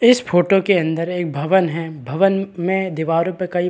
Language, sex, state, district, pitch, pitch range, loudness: Hindi, male, Chhattisgarh, Rajnandgaon, 175 Hz, 165-190 Hz, -18 LUFS